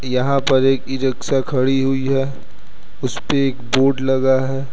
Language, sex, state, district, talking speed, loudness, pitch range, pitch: Hindi, male, Uttar Pradesh, Lucknow, 165 wpm, -18 LUFS, 130-135 Hz, 135 Hz